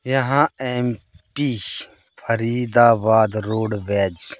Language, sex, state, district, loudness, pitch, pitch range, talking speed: Hindi, male, Madhya Pradesh, Katni, -20 LUFS, 115 Hz, 105-125 Hz, 70 wpm